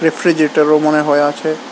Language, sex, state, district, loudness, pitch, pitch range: Bengali, male, Tripura, West Tripura, -13 LUFS, 155 Hz, 150-155 Hz